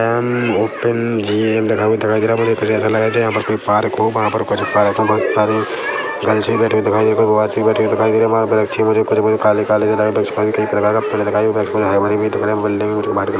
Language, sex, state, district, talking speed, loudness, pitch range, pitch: Hindi, male, Chhattisgarh, Rajnandgaon, 305 wpm, -16 LUFS, 105-110 Hz, 110 Hz